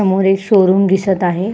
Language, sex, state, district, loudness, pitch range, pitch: Marathi, female, Maharashtra, Sindhudurg, -13 LUFS, 190-195 Hz, 195 Hz